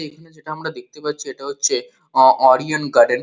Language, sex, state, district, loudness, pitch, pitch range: Bengali, male, West Bengal, Kolkata, -18 LUFS, 155 Hz, 135-165 Hz